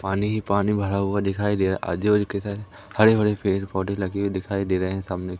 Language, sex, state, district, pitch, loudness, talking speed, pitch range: Hindi, male, Madhya Pradesh, Umaria, 100 Hz, -23 LUFS, 235 wpm, 95-105 Hz